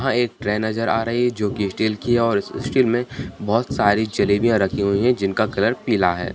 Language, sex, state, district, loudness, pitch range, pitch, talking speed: Hindi, male, Bihar, Kishanganj, -20 LUFS, 100-120 Hz, 110 Hz, 245 wpm